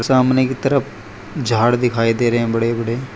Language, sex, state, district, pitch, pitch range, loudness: Hindi, male, Gujarat, Valsad, 120 Hz, 115-130 Hz, -17 LUFS